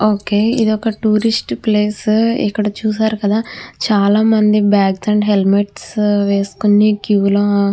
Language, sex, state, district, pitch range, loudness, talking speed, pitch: Telugu, female, Andhra Pradesh, Krishna, 205-215 Hz, -15 LUFS, 130 wpm, 210 Hz